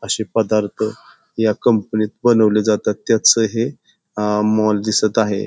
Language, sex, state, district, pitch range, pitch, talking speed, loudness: Marathi, male, Maharashtra, Pune, 105-115 Hz, 110 Hz, 130 wpm, -17 LUFS